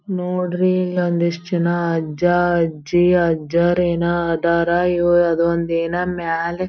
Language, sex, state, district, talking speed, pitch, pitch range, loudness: Kannada, female, Karnataka, Belgaum, 115 wpm, 175 Hz, 170-175 Hz, -18 LUFS